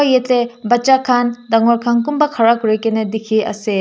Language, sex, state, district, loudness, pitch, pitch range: Nagamese, female, Nagaland, Kohima, -15 LUFS, 235 Hz, 220-250 Hz